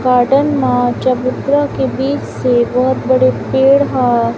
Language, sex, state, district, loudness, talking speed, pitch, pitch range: Hindi, female, Chhattisgarh, Raipur, -13 LUFS, 150 wpm, 255 Hz, 245-270 Hz